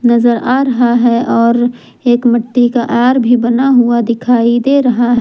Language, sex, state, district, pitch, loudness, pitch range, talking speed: Hindi, female, Jharkhand, Garhwa, 240 Hz, -11 LUFS, 235-245 Hz, 175 wpm